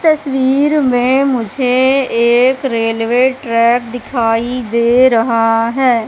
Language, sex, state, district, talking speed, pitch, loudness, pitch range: Hindi, female, Madhya Pradesh, Katni, 100 wpm, 245 Hz, -13 LUFS, 230-260 Hz